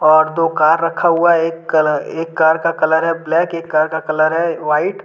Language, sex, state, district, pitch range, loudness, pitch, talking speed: Hindi, male, Jharkhand, Deoghar, 155-165 Hz, -15 LUFS, 165 Hz, 240 wpm